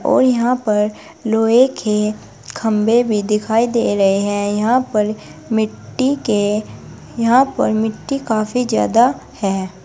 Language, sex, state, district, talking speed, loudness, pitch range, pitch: Hindi, female, Uttar Pradesh, Saharanpur, 130 wpm, -17 LUFS, 210-245 Hz, 220 Hz